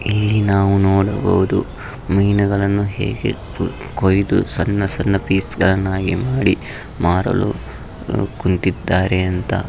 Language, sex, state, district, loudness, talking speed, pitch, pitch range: Kannada, male, Karnataka, Raichur, -18 LUFS, 95 wpm, 100 Hz, 95-105 Hz